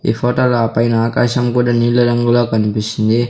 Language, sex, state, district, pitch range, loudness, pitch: Telugu, male, Andhra Pradesh, Sri Satya Sai, 115-120 Hz, -14 LUFS, 120 Hz